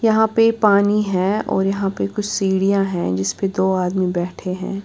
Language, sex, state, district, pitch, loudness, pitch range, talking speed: Hindi, female, Uttar Pradesh, Lalitpur, 195 Hz, -19 LUFS, 185-205 Hz, 200 wpm